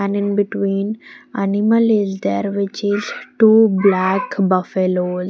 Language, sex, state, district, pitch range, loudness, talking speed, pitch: English, female, Punjab, Pathankot, 190-210 Hz, -17 LUFS, 125 wpm, 200 Hz